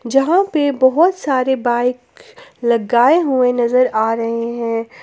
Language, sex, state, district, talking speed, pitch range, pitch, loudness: Hindi, female, Jharkhand, Palamu, 130 wpm, 235-290 Hz, 255 Hz, -16 LUFS